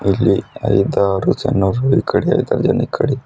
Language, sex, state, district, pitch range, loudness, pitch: Kannada, female, Karnataka, Bidar, 95-135 Hz, -16 LUFS, 100 Hz